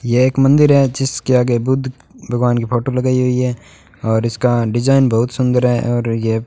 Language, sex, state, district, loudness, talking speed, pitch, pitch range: Hindi, male, Rajasthan, Bikaner, -15 LUFS, 205 wpm, 125 Hz, 120-130 Hz